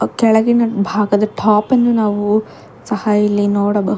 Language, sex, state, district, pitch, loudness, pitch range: Kannada, female, Karnataka, Bangalore, 210 Hz, -15 LUFS, 205-220 Hz